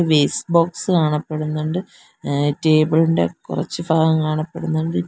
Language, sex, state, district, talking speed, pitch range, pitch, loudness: Malayalam, female, Kerala, Kollam, 120 wpm, 145-165 Hz, 155 Hz, -19 LUFS